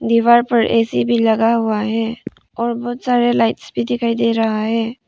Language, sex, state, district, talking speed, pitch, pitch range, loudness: Hindi, female, Arunachal Pradesh, Papum Pare, 190 wpm, 230 Hz, 220-235 Hz, -17 LUFS